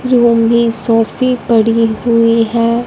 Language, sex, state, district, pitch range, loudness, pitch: Hindi, female, Punjab, Fazilka, 230-235 Hz, -12 LUFS, 230 Hz